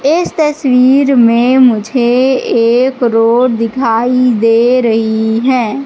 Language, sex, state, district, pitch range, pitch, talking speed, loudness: Hindi, female, Madhya Pradesh, Katni, 230-260 Hz, 245 Hz, 100 wpm, -10 LUFS